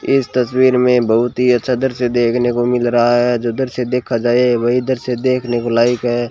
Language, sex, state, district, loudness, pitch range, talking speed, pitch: Hindi, male, Rajasthan, Bikaner, -15 LUFS, 120-125 Hz, 210 wpm, 125 Hz